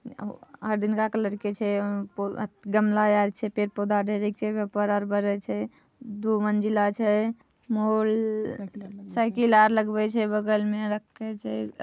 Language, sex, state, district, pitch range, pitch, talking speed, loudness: Maithili, female, Bihar, Saharsa, 205-215 Hz, 210 Hz, 135 wpm, -26 LUFS